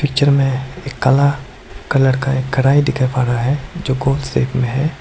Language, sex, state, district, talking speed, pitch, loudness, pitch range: Hindi, male, Arunachal Pradesh, Lower Dibang Valley, 180 wpm, 135 Hz, -16 LUFS, 130-140 Hz